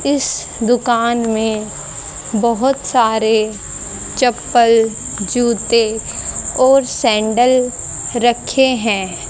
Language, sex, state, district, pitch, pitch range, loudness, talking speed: Hindi, female, Haryana, Rohtak, 235 Hz, 220-250 Hz, -15 LUFS, 70 wpm